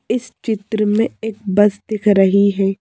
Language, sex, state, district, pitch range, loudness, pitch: Hindi, female, Madhya Pradesh, Bhopal, 200-220 Hz, -17 LUFS, 210 Hz